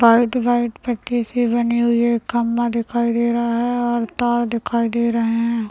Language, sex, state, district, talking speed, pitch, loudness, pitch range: Hindi, male, Chhattisgarh, Raigarh, 190 wpm, 235 Hz, -19 LUFS, 235-240 Hz